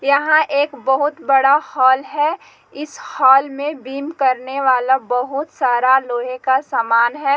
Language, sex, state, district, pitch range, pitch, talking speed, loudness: Hindi, female, Jharkhand, Palamu, 260-290 Hz, 270 Hz, 145 wpm, -16 LUFS